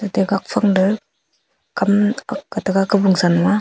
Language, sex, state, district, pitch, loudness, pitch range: Wancho, female, Arunachal Pradesh, Longding, 200 Hz, -18 LUFS, 190-210 Hz